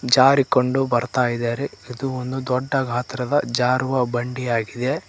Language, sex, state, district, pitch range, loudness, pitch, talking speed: Kannada, male, Karnataka, Koppal, 125-135 Hz, -21 LUFS, 125 Hz, 105 wpm